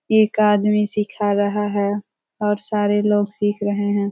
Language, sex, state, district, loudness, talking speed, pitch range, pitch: Hindi, female, Uttar Pradesh, Ghazipur, -20 LUFS, 160 wpm, 205-210 Hz, 205 Hz